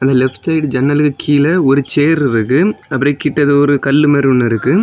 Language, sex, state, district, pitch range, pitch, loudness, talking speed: Tamil, male, Tamil Nadu, Kanyakumari, 135-150 Hz, 145 Hz, -12 LUFS, 175 wpm